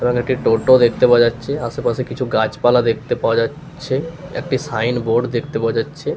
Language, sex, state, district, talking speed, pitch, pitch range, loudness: Bengali, male, West Bengal, Paschim Medinipur, 175 wpm, 125 Hz, 120-135 Hz, -17 LUFS